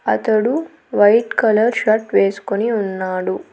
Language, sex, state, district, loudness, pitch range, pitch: Telugu, female, Andhra Pradesh, Annamaya, -17 LUFS, 190-225 Hz, 215 Hz